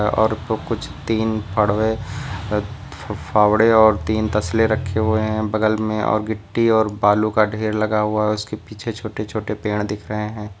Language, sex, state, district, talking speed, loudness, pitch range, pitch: Hindi, male, Uttar Pradesh, Lucknow, 180 wpm, -20 LUFS, 105-110 Hz, 110 Hz